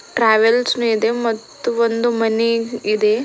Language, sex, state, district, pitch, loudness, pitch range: Kannada, female, Karnataka, Bidar, 230 Hz, -17 LUFS, 220-235 Hz